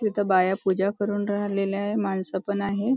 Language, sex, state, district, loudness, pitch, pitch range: Marathi, female, Maharashtra, Nagpur, -25 LUFS, 200 Hz, 195-205 Hz